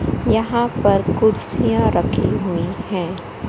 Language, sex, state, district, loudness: Hindi, male, Madhya Pradesh, Katni, -18 LUFS